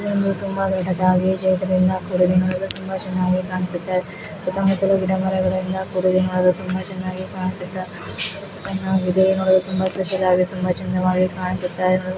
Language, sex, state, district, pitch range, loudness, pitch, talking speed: Kannada, female, Karnataka, Mysore, 185-190 Hz, -21 LUFS, 185 Hz, 55 wpm